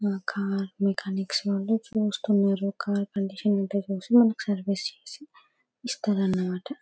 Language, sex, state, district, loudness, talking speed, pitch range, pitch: Telugu, female, Telangana, Karimnagar, -27 LUFS, 105 wpm, 195-215 Hz, 200 Hz